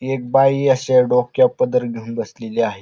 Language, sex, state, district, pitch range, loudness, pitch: Marathi, male, Maharashtra, Pune, 115-135 Hz, -17 LUFS, 125 Hz